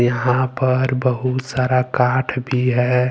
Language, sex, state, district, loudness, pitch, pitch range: Hindi, male, Jharkhand, Ranchi, -18 LUFS, 130 Hz, 125-130 Hz